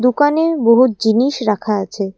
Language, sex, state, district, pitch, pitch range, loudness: Bengali, female, Assam, Kamrup Metropolitan, 235 Hz, 215-270 Hz, -15 LUFS